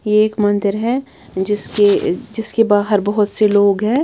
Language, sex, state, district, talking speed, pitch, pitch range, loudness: Hindi, female, Bihar, Patna, 165 wpm, 210 Hz, 205-220 Hz, -16 LUFS